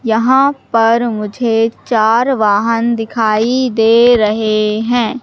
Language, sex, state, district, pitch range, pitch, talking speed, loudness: Hindi, female, Madhya Pradesh, Katni, 220-240 Hz, 230 Hz, 105 wpm, -13 LUFS